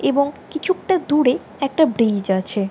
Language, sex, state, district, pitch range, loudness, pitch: Bengali, female, West Bengal, Paschim Medinipur, 215-315 Hz, -19 LUFS, 280 Hz